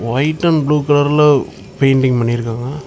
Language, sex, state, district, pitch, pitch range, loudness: Tamil, male, Tamil Nadu, Namakkal, 145 Hz, 125-150 Hz, -14 LUFS